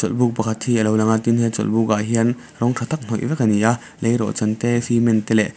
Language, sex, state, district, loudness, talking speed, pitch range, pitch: Mizo, male, Mizoram, Aizawl, -19 LUFS, 260 wpm, 110-120 Hz, 115 Hz